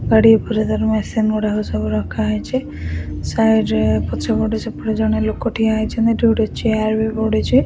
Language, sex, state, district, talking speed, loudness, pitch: Odia, female, Odisha, Khordha, 165 wpm, -18 LUFS, 215 Hz